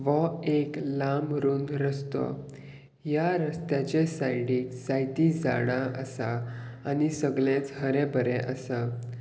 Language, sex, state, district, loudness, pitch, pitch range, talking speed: Konkani, male, Goa, North and South Goa, -29 LUFS, 140 Hz, 130-145 Hz, 105 wpm